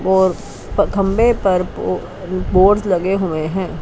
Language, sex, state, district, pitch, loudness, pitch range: Hindi, female, Chandigarh, Chandigarh, 190 Hz, -17 LUFS, 185-195 Hz